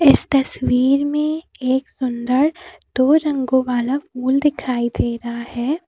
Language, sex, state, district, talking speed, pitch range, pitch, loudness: Hindi, female, Jharkhand, Deoghar, 135 wpm, 250-295 Hz, 265 Hz, -19 LUFS